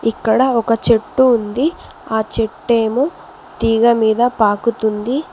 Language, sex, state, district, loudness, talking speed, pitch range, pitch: Telugu, female, Telangana, Mahabubabad, -16 LUFS, 115 wpm, 220-250 Hz, 230 Hz